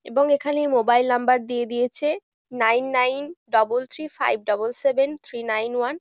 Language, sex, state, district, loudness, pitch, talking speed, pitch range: Bengali, female, West Bengal, Jhargram, -22 LUFS, 250 Hz, 170 wpm, 240-280 Hz